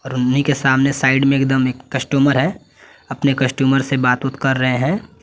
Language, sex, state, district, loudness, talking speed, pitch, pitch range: Hindi, male, Bihar, West Champaran, -17 LUFS, 185 wpm, 135 Hz, 130-140 Hz